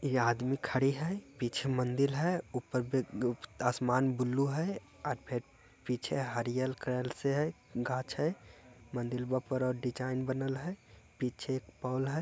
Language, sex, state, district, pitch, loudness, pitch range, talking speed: Hindi, male, Bihar, Jamui, 130 Hz, -35 LUFS, 125-135 Hz, 150 wpm